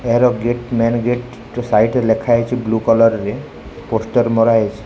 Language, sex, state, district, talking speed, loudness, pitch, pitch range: Odia, male, Odisha, Khordha, 185 wpm, -16 LUFS, 115 Hz, 110-120 Hz